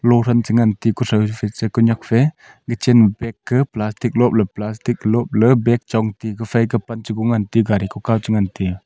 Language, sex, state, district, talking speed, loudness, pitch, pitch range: Wancho, male, Arunachal Pradesh, Longding, 205 wpm, -18 LUFS, 115 Hz, 105-120 Hz